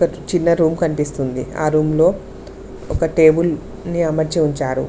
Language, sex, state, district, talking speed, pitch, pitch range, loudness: Telugu, female, Telangana, Mahabubabad, 120 wpm, 155 Hz, 150-170 Hz, -17 LUFS